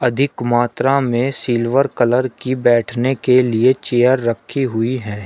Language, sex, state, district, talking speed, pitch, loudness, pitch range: Hindi, male, Uttar Pradesh, Shamli, 150 wpm, 125 Hz, -16 LUFS, 120-130 Hz